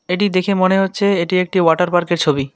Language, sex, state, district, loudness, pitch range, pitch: Bengali, male, West Bengal, Alipurduar, -16 LUFS, 170-195 Hz, 180 Hz